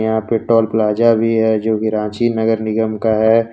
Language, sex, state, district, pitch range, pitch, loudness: Hindi, male, Jharkhand, Ranchi, 110-115 Hz, 110 Hz, -16 LUFS